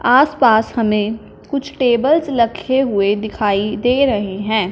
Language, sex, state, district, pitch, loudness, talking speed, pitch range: Hindi, female, Punjab, Fazilka, 230 Hz, -16 LUFS, 125 wpm, 210-265 Hz